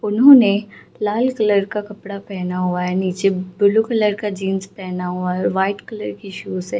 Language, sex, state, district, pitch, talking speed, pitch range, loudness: Hindi, female, Bihar, Gaya, 200 Hz, 195 wpm, 185-210 Hz, -18 LUFS